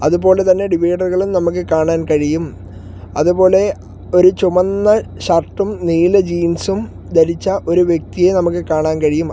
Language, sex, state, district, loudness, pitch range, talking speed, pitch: Malayalam, male, Kerala, Kollam, -15 LUFS, 165-185 Hz, 110 wpm, 175 Hz